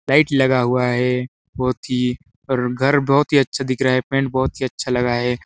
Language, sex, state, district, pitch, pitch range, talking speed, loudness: Hindi, male, Chhattisgarh, Sarguja, 130 Hz, 125-135 Hz, 200 wpm, -19 LUFS